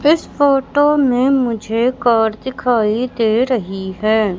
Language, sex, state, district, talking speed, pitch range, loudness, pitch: Hindi, female, Madhya Pradesh, Katni, 125 wpm, 220-265 Hz, -16 LUFS, 245 Hz